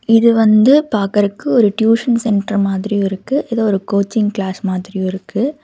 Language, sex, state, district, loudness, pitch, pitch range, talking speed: Tamil, female, Karnataka, Bangalore, -15 LUFS, 210 Hz, 195-230 Hz, 150 wpm